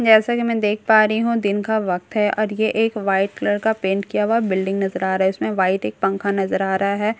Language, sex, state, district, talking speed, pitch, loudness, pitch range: Hindi, female, Bihar, Katihar, 275 wpm, 205 Hz, -19 LUFS, 195-220 Hz